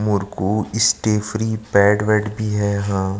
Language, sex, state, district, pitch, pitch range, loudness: Hindi, male, Chhattisgarh, Sukma, 105 Hz, 100-110 Hz, -19 LUFS